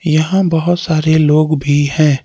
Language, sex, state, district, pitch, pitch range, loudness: Hindi, male, Jharkhand, Palamu, 155 Hz, 150-165 Hz, -13 LUFS